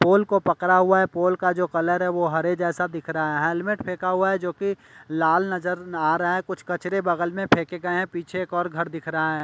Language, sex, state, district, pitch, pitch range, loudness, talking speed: Hindi, male, Delhi, New Delhi, 175 Hz, 170-185 Hz, -23 LUFS, 260 wpm